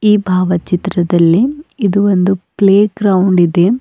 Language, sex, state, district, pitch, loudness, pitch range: Kannada, female, Karnataka, Bidar, 195 Hz, -12 LUFS, 180-210 Hz